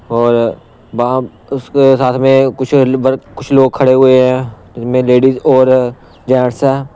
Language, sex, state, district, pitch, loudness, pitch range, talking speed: Hindi, male, Punjab, Pathankot, 130 Hz, -11 LUFS, 125-135 Hz, 145 wpm